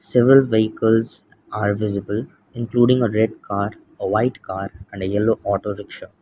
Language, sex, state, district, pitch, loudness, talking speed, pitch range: English, male, Sikkim, Gangtok, 110 Hz, -20 LUFS, 155 wpm, 100-115 Hz